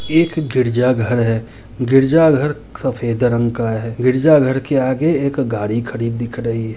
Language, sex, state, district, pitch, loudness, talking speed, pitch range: Maithili, male, Bihar, Muzaffarpur, 125 Hz, -16 LUFS, 175 wpm, 115-135 Hz